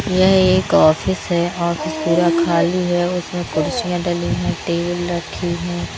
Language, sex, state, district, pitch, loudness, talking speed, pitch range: Hindi, female, Haryana, Rohtak, 175 Hz, -18 LUFS, 150 wpm, 170-180 Hz